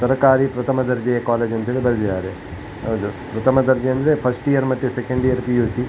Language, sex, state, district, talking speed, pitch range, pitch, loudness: Kannada, male, Karnataka, Dakshina Kannada, 185 wpm, 115-130 Hz, 125 Hz, -19 LUFS